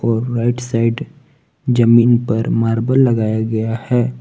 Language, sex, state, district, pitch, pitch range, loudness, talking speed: Hindi, male, Jharkhand, Palamu, 120 Hz, 115-125 Hz, -16 LUFS, 130 wpm